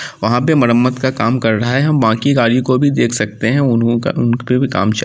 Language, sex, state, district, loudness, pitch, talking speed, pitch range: Angika, male, Bihar, Samastipur, -14 LUFS, 125 Hz, 260 wpm, 115-135 Hz